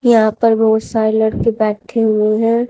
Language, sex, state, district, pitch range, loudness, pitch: Hindi, female, Haryana, Rohtak, 220-230 Hz, -14 LUFS, 220 Hz